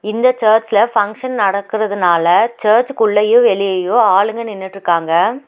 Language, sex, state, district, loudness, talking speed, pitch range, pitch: Tamil, female, Tamil Nadu, Nilgiris, -14 LUFS, 90 wpm, 190-225 Hz, 210 Hz